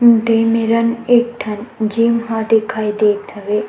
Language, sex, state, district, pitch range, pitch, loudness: Chhattisgarhi, female, Chhattisgarh, Sukma, 210-230 Hz, 225 Hz, -16 LUFS